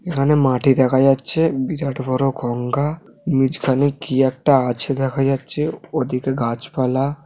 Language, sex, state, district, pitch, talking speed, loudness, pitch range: Bengali, male, West Bengal, North 24 Parganas, 135 Hz, 115 wpm, -19 LUFS, 130-140 Hz